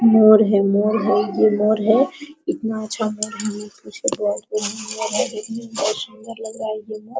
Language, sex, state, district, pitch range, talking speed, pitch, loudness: Hindi, female, Bihar, Araria, 215-225 Hz, 165 wpm, 215 Hz, -20 LUFS